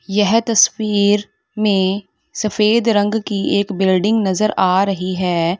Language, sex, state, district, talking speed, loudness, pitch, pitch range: Hindi, female, Uttar Pradesh, Lalitpur, 130 wpm, -16 LUFS, 205 Hz, 190-215 Hz